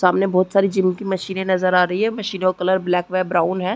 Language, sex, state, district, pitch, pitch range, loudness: Hindi, female, Chhattisgarh, Sarguja, 185 Hz, 180-190 Hz, -19 LUFS